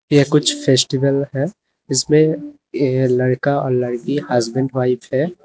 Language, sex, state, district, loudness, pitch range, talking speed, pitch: Hindi, male, Uttar Pradesh, Lalitpur, -17 LUFS, 130-145 Hz, 110 wpm, 140 Hz